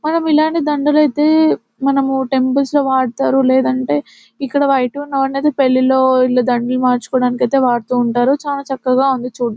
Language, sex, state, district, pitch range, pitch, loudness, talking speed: Telugu, female, Telangana, Nalgonda, 250-280 Hz, 265 Hz, -15 LUFS, 150 wpm